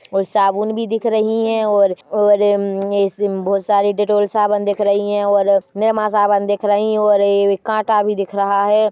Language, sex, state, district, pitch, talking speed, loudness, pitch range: Hindi, female, Chhattisgarh, Bilaspur, 205 Hz, 200 wpm, -16 LUFS, 200-215 Hz